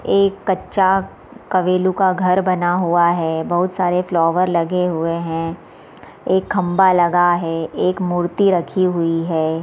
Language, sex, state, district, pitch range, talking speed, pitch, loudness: Hindi, female, Bihar, East Champaran, 170-185 Hz, 150 wpm, 180 Hz, -17 LUFS